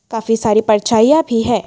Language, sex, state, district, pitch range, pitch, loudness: Hindi, female, Assam, Kamrup Metropolitan, 220-230 Hz, 225 Hz, -14 LUFS